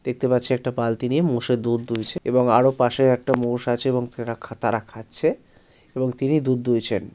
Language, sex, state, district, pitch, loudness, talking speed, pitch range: Bengali, male, West Bengal, Kolkata, 125 Hz, -22 LUFS, 185 wpm, 120-130 Hz